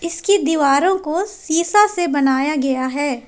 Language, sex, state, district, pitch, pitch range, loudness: Hindi, female, Jharkhand, Palamu, 315 Hz, 275-370 Hz, -17 LUFS